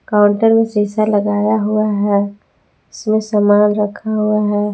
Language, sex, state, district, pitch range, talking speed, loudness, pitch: Hindi, female, Jharkhand, Palamu, 205-215 Hz, 140 wpm, -15 LUFS, 210 Hz